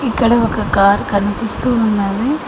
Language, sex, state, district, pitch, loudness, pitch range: Telugu, female, Telangana, Mahabubabad, 225 Hz, -15 LUFS, 200-235 Hz